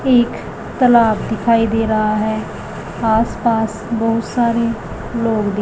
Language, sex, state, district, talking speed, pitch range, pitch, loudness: Hindi, male, Punjab, Pathankot, 115 wpm, 220-235 Hz, 225 Hz, -17 LUFS